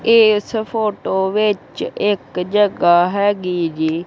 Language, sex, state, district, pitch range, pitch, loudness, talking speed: Punjabi, male, Punjab, Kapurthala, 180-210 Hz, 200 Hz, -17 LUFS, 105 wpm